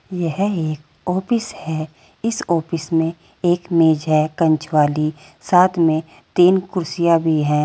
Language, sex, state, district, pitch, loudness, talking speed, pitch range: Hindi, female, Uttar Pradesh, Saharanpur, 165 Hz, -19 LUFS, 140 wpm, 155-180 Hz